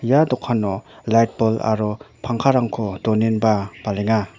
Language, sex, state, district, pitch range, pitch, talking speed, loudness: Garo, male, Meghalaya, West Garo Hills, 105-115 Hz, 110 Hz, 110 wpm, -20 LUFS